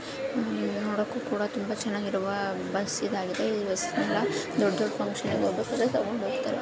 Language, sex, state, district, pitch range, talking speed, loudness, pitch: Kannada, male, Karnataka, Bijapur, 195-215 Hz, 145 wpm, -29 LUFS, 205 Hz